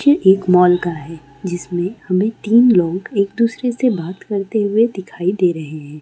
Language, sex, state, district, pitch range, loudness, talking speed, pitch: Hindi, female, Uttarakhand, Uttarkashi, 175-220 Hz, -17 LUFS, 170 wpm, 190 Hz